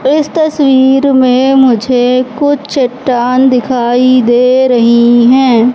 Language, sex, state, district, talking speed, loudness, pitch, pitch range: Hindi, female, Madhya Pradesh, Katni, 105 wpm, -9 LUFS, 255 Hz, 245-265 Hz